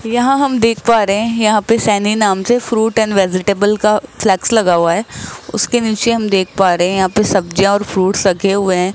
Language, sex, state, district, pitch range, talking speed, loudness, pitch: Hindi, male, Rajasthan, Jaipur, 190-225 Hz, 230 wpm, -14 LUFS, 210 Hz